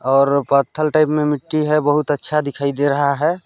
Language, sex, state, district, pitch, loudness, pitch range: Hindi, male, Chhattisgarh, Balrampur, 145 Hz, -17 LUFS, 140-150 Hz